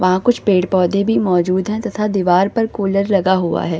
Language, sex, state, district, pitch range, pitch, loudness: Hindi, female, Bihar, Samastipur, 185-210 Hz, 195 Hz, -16 LUFS